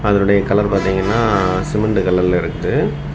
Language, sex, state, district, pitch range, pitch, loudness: Tamil, male, Tamil Nadu, Kanyakumari, 90-105 Hz, 100 Hz, -16 LUFS